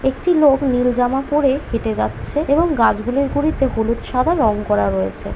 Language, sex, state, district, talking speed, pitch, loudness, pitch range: Bengali, female, West Bengal, Jhargram, 180 wpm, 260 Hz, -17 LUFS, 225-290 Hz